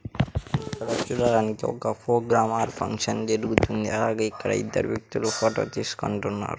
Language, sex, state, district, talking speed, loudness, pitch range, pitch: Telugu, female, Andhra Pradesh, Sri Satya Sai, 125 wpm, -26 LUFS, 110-115 Hz, 110 Hz